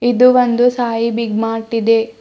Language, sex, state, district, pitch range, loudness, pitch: Kannada, female, Karnataka, Bidar, 225-245 Hz, -14 LUFS, 230 Hz